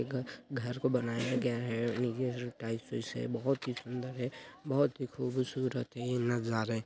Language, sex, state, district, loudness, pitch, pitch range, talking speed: Hindi, male, Chhattisgarh, Sarguja, -35 LUFS, 125 Hz, 120-130 Hz, 185 wpm